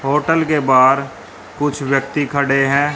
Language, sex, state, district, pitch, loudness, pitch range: Hindi, male, Haryana, Rohtak, 140 Hz, -16 LUFS, 135-145 Hz